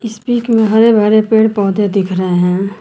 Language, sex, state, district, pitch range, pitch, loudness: Hindi, female, Uttar Pradesh, Lucknow, 195-225 Hz, 215 Hz, -12 LUFS